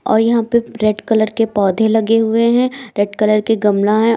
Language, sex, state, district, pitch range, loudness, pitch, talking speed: Hindi, female, Uttar Pradesh, Lucknow, 210-230 Hz, -15 LUFS, 220 Hz, 215 wpm